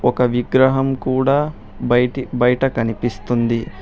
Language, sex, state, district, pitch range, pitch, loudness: Telugu, male, Telangana, Hyderabad, 120-130 Hz, 125 Hz, -18 LUFS